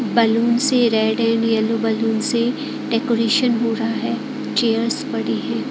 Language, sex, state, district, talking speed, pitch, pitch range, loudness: Hindi, female, Odisha, Khordha, 145 wpm, 230 Hz, 225-240 Hz, -19 LUFS